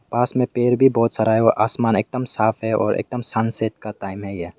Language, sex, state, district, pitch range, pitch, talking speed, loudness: Hindi, male, Meghalaya, West Garo Hills, 110-125 Hz, 115 Hz, 260 wpm, -20 LUFS